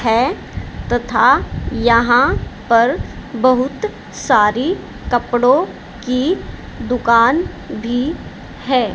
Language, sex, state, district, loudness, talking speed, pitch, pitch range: Hindi, female, Haryana, Charkhi Dadri, -16 LUFS, 75 wpm, 250 Hz, 235-265 Hz